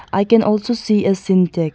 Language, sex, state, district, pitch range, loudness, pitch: English, female, Arunachal Pradesh, Longding, 190-215 Hz, -16 LUFS, 195 Hz